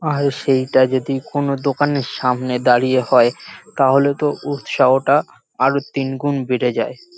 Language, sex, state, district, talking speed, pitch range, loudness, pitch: Bengali, male, West Bengal, North 24 Parganas, 125 wpm, 130-140 Hz, -17 LUFS, 135 Hz